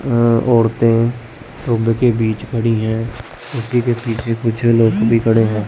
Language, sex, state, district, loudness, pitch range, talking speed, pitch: Hindi, male, Chandigarh, Chandigarh, -16 LUFS, 115-120 Hz, 150 wpm, 115 Hz